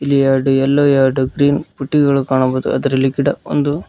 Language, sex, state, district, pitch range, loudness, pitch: Kannada, male, Karnataka, Koppal, 135-145 Hz, -15 LUFS, 135 Hz